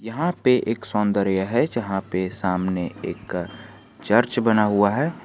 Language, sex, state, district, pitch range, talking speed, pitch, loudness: Hindi, male, Jharkhand, Garhwa, 95-120 Hz, 150 wpm, 105 Hz, -22 LUFS